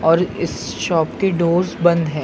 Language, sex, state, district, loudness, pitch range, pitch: Hindi, male, Maharashtra, Mumbai Suburban, -18 LUFS, 165-175 Hz, 170 Hz